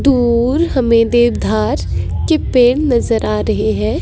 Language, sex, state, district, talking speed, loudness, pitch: Hindi, female, Himachal Pradesh, Shimla, 135 wpm, -14 LUFS, 230 Hz